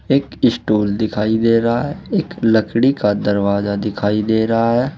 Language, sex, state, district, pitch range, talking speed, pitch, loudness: Hindi, male, Uttar Pradesh, Saharanpur, 105-120 Hz, 170 wpm, 110 Hz, -17 LUFS